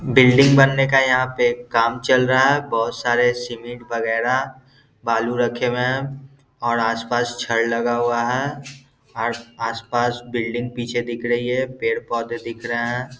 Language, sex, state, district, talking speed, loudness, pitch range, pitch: Hindi, male, Bihar, Gaya, 160 wpm, -20 LUFS, 120-130 Hz, 120 Hz